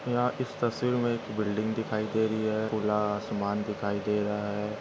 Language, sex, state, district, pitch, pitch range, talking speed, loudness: Hindi, male, Maharashtra, Aurangabad, 110 Hz, 105-115 Hz, 200 wpm, -30 LUFS